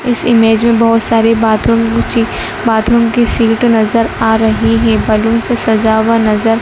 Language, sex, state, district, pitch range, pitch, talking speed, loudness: Hindi, female, Madhya Pradesh, Dhar, 220-230 Hz, 225 Hz, 170 wpm, -11 LUFS